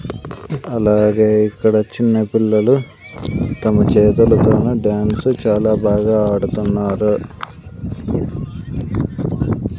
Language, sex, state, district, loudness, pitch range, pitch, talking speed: Telugu, male, Andhra Pradesh, Sri Satya Sai, -16 LUFS, 105-115 Hz, 110 Hz, 60 wpm